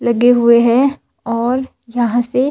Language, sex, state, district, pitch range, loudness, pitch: Hindi, female, Himachal Pradesh, Shimla, 235-255 Hz, -14 LUFS, 240 Hz